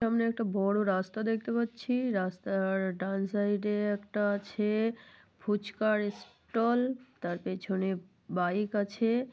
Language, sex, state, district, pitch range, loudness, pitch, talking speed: Bengali, female, West Bengal, North 24 Parganas, 195-230 Hz, -31 LUFS, 210 Hz, 120 wpm